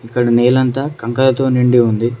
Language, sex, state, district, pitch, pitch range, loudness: Telugu, male, Telangana, Mahabubabad, 125 Hz, 120-130 Hz, -14 LUFS